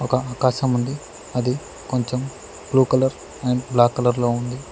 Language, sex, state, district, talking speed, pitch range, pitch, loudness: Telugu, male, Telangana, Mahabubabad, 140 wpm, 125-130 Hz, 125 Hz, -21 LUFS